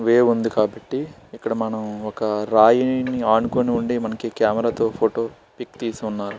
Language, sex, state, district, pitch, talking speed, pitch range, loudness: Telugu, male, Andhra Pradesh, Srikakulam, 115 Hz, 120 wpm, 110-120 Hz, -21 LUFS